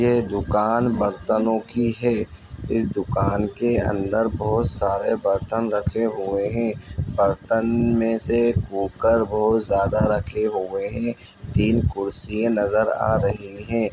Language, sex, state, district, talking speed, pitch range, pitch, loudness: Hindi, male, Bihar, Muzaffarpur, 130 wpm, 100-115 Hz, 110 Hz, -22 LUFS